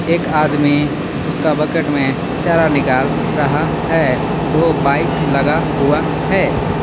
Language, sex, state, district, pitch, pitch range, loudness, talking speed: Hindi, male, Jharkhand, Garhwa, 150 Hz, 145-160 Hz, -15 LUFS, 125 wpm